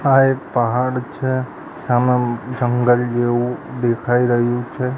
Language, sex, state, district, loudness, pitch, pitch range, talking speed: Gujarati, male, Gujarat, Gandhinagar, -18 LUFS, 125 Hz, 120-130 Hz, 120 wpm